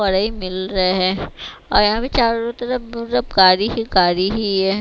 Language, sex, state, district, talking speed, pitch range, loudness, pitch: Hindi, female, Bihar, West Champaran, 185 wpm, 190-230 Hz, -18 LUFS, 210 Hz